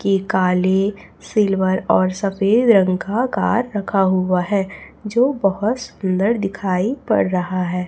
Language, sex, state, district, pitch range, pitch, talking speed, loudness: Hindi, female, Chhattisgarh, Raipur, 185-210 Hz, 195 Hz, 135 wpm, -18 LUFS